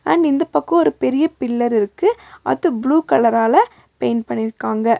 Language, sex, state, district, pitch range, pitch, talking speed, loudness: Tamil, female, Tamil Nadu, Nilgiris, 225-330 Hz, 255 Hz, 145 wpm, -17 LUFS